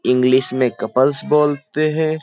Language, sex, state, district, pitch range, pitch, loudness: Hindi, male, Uttar Pradesh, Jyotiba Phule Nagar, 125-155 Hz, 140 Hz, -16 LUFS